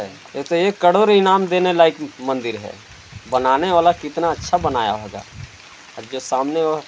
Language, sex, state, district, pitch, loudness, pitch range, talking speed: Hindi, male, Chhattisgarh, Sarguja, 155 Hz, -18 LUFS, 130-175 Hz, 150 wpm